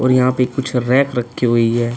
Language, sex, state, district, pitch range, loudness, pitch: Hindi, male, Uttar Pradesh, Budaun, 120-130 Hz, -16 LUFS, 125 Hz